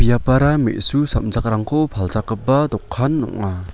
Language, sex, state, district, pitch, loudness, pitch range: Garo, male, Meghalaya, West Garo Hills, 115 Hz, -18 LUFS, 110-135 Hz